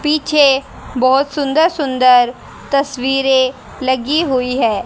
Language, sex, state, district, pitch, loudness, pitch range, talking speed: Hindi, female, Haryana, Jhajjar, 270 Hz, -14 LUFS, 255-290 Hz, 85 wpm